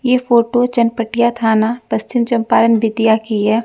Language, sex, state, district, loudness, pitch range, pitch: Hindi, female, Bihar, West Champaran, -15 LUFS, 225-240 Hz, 230 Hz